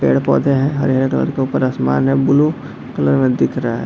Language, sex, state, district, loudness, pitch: Hindi, male, Bihar, Darbhanga, -16 LUFS, 130 Hz